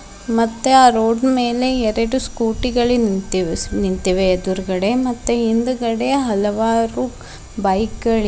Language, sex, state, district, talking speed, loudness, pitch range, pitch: Kannada, female, Karnataka, Bidar, 115 wpm, -17 LUFS, 195-245 Hz, 230 Hz